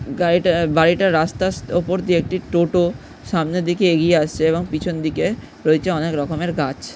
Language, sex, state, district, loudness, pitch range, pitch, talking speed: Bengali, male, West Bengal, Jhargram, -19 LUFS, 160-180 Hz, 170 Hz, 155 wpm